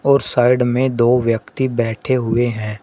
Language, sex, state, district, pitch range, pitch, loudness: Hindi, male, Uttar Pradesh, Shamli, 115-130 Hz, 120 Hz, -17 LUFS